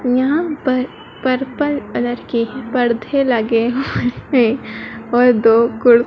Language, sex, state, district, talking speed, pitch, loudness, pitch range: Hindi, female, Madhya Pradesh, Dhar, 100 wpm, 245 Hz, -17 LUFS, 235-260 Hz